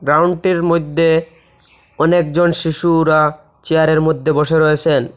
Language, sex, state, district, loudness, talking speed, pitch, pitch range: Bengali, male, Assam, Hailakandi, -14 LUFS, 95 wpm, 160 Hz, 155-170 Hz